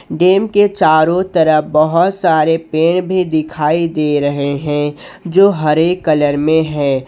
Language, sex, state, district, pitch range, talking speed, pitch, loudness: Hindi, male, Jharkhand, Ranchi, 150-180 Hz, 145 wpm, 155 Hz, -13 LUFS